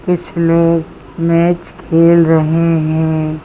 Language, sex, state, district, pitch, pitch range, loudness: Hindi, female, Madhya Pradesh, Bhopal, 165 Hz, 160-170 Hz, -13 LUFS